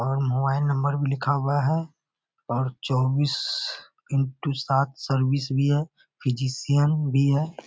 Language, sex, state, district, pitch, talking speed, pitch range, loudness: Hindi, male, Bihar, Muzaffarpur, 140 Hz, 135 wpm, 135-145 Hz, -25 LUFS